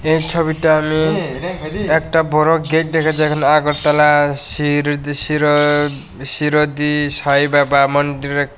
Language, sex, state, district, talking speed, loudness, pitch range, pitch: Bengali, male, Tripura, West Tripura, 100 wpm, -15 LUFS, 145-155 Hz, 150 Hz